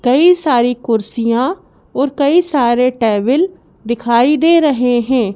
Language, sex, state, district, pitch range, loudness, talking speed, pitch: Hindi, male, Madhya Pradesh, Bhopal, 235-300 Hz, -13 LUFS, 125 wpm, 255 Hz